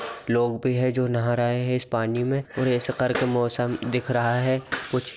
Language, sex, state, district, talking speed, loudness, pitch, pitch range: Hindi, male, Bihar, Saran, 220 wpm, -24 LUFS, 125 Hz, 120-130 Hz